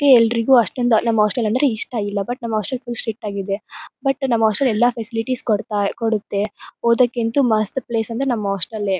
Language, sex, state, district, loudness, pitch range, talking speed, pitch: Kannada, female, Karnataka, Bellary, -19 LUFS, 215-245 Hz, 195 wpm, 230 Hz